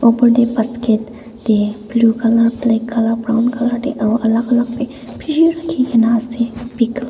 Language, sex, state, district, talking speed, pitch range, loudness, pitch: Nagamese, female, Nagaland, Dimapur, 170 wpm, 230-245 Hz, -16 LUFS, 235 Hz